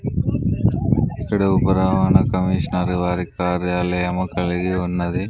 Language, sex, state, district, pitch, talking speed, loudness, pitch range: Telugu, male, Andhra Pradesh, Sri Satya Sai, 90 Hz, 90 wpm, -20 LUFS, 90-95 Hz